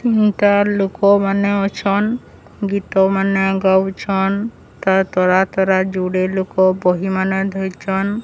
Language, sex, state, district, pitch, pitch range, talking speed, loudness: Odia, male, Odisha, Sambalpur, 195 Hz, 190-200 Hz, 110 wpm, -17 LUFS